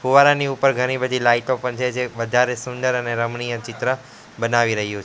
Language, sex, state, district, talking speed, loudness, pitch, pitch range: Gujarati, male, Gujarat, Gandhinagar, 180 wpm, -20 LUFS, 125 Hz, 120-130 Hz